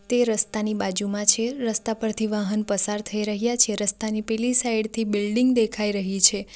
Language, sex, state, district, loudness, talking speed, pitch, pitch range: Gujarati, female, Gujarat, Valsad, -23 LUFS, 175 wpm, 215 Hz, 205-225 Hz